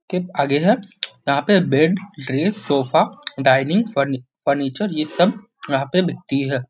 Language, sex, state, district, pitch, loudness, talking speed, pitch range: Hindi, male, Bihar, Muzaffarpur, 155 Hz, -19 LUFS, 150 wpm, 135-200 Hz